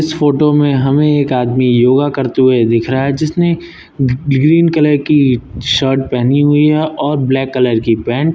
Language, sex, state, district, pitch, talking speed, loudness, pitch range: Hindi, male, Uttar Pradesh, Lucknow, 135 Hz, 195 wpm, -12 LUFS, 130-150 Hz